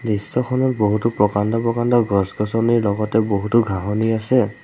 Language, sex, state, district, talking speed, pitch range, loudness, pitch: Assamese, male, Assam, Sonitpur, 115 wpm, 105-120 Hz, -19 LUFS, 110 Hz